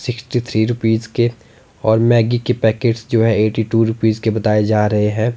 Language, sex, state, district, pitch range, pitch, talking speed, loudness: Hindi, male, Himachal Pradesh, Shimla, 110-120 Hz, 115 Hz, 200 wpm, -16 LUFS